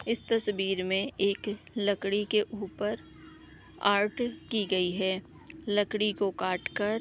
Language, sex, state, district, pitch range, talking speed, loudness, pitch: Hindi, female, Bihar, Darbhanga, 195-210 Hz, 135 wpm, -30 LUFS, 205 Hz